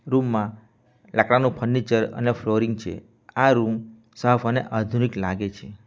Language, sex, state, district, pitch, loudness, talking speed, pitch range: Gujarati, male, Gujarat, Valsad, 115 Hz, -23 LUFS, 145 wpm, 110-125 Hz